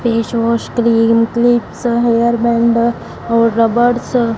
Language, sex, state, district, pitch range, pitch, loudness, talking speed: Hindi, female, Punjab, Fazilka, 230-235 Hz, 235 Hz, -14 LUFS, 125 wpm